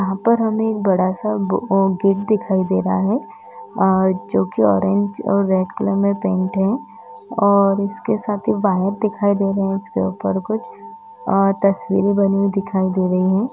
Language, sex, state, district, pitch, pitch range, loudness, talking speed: Hindi, female, Uttar Pradesh, Etah, 195 Hz, 185-215 Hz, -18 LUFS, 175 wpm